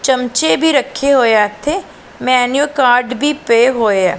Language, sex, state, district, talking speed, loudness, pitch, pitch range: Punjabi, female, Punjab, Pathankot, 145 wpm, -13 LUFS, 255 Hz, 235-280 Hz